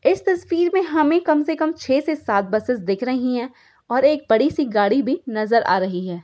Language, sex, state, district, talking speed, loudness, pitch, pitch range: Hindi, female, Uttar Pradesh, Gorakhpur, 230 wpm, -20 LUFS, 260 Hz, 220-315 Hz